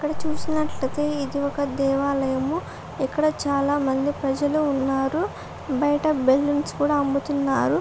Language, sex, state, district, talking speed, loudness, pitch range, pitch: Telugu, female, Andhra Pradesh, Guntur, 105 wpm, -23 LUFS, 270-295 Hz, 285 Hz